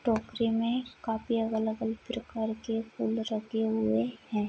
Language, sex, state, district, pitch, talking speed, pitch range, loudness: Hindi, female, Maharashtra, Chandrapur, 225 Hz, 135 wpm, 220-225 Hz, -31 LUFS